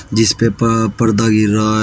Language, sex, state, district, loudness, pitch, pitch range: Hindi, male, Uttar Pradesh, Shamli, -14 LUFS, 110 Hz, 110-115 Hz